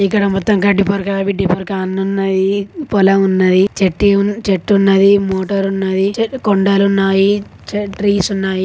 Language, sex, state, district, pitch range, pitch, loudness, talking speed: Telugu, female, Telangana, Karimnagar, 195-200 Hz, 195 Hz, -14 LUFS, 120 wpm